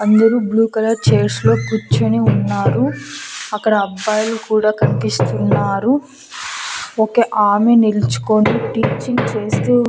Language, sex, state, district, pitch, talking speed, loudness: Telugu, female, Andhra Pradesh, Annamaya, 215 Hz, 95 wpm, -16 LUFS